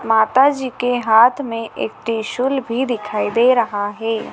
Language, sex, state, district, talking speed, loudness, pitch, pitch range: Hindi, female, Madhya Pradesh, Dhar, 165 wpm, -17 LUFS, 230 Hz, 220-255 Hz